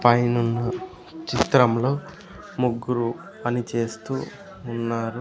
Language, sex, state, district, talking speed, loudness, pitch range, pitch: Telugu, male, Andhra Pradesh, Sri Satya Sai, 80 wpm, -24 LUFS, 115-135 Hz, 120 Hz